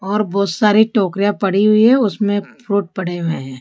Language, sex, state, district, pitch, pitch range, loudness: Hindi, female, Rajasthan, Jaipur, 200 Hz, 190-215 Hz, -16 LUFS